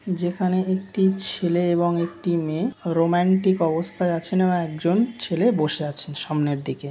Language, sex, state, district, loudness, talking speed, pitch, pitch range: Bengali, male, West Bengal, Dakshin Dinajpur, -22 LUFS, 145 wpm, 175 Hz, 165-185 Hz